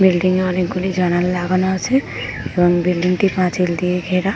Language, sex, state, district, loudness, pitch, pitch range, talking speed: Bengali, female, West Bengal, Paschim Medinipur, -18 LUFS, 180 Hz, 175-185 Hz, 195 wpm